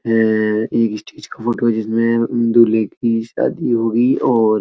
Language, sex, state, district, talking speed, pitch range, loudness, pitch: Hindi, male, Uttar Pradesh, Etah, 180 wpm, 110-115 Hz, -16 LUFS, 115 Hz